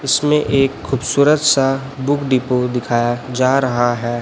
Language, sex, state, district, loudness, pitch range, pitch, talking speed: Hindi, male, Chhattisgarh, Raipur, -16 LUFS, 125-140 Hz, 135 Hz, 140 wpm